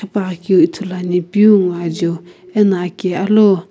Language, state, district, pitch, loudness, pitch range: Sumi, Nagaland, Kohima, 185 Hz, -15 LUFS, 180-205 Hz